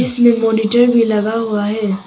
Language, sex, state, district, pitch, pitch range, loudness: Hindi, female, Arunachal Pradesh, Papum Pare, 225 Hz, 215-235 Hz, -14 LUFS